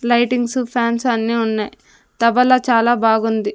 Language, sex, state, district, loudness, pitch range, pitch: Telugu, female, Andhra Pradesh, Sri Satya Sai, -16 LUFS, 225-245 Hz, 235 Hz